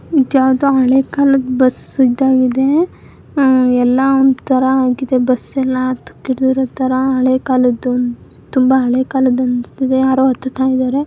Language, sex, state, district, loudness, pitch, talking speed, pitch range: Kannada, female, Karnataka, Mysore, -14 LUFS, 260 Hz, 125 wpm, 255-265 Hz